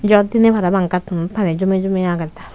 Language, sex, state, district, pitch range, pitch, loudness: Chakma, female, Tripura, Unakoti, 180-205 Hz, 190 Hz, -17 LUFS